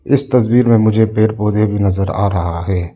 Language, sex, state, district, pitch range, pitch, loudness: Hindi, male, Arunachal Pradesh, Lower Dibang Valley, 95-115 Hz, 105 Hz, -14 LUFS